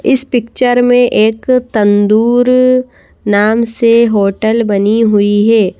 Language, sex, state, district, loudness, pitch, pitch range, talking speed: Hindi, female, Madhya Pradesh, Bhopal, -10 LUFS, 230 Hz, 210-245 Hz, 115 wpm